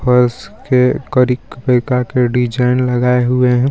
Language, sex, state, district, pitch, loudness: Hindi, female, Jharkhand, Garhwa, 125 Hz, -14 LUFS